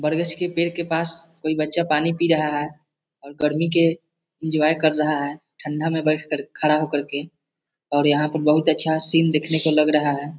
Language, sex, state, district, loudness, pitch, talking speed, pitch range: Hindi, male, Bihar, East Champaran, -21 LUFS, 155 Hz, 210 wpm, 150-165 Hz